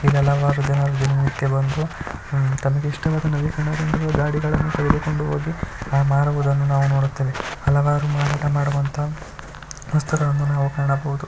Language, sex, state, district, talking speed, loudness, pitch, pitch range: Kannada, male, Karnataka, Shimoga, 95 wpm, -21 LUFS, 140 Hz, 140-145 Hz